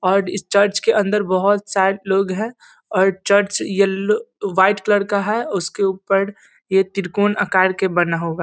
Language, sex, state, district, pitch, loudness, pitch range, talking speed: Hindi, male, Bihar, East Champaran, 195 Hz, -18 LUFS, 190-205 Hz, 180 wpm